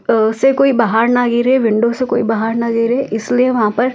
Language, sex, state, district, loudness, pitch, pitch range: Hindi, female, Delhi, New Delhi, -14 LUFS, 235 Hz, 225-250 Hz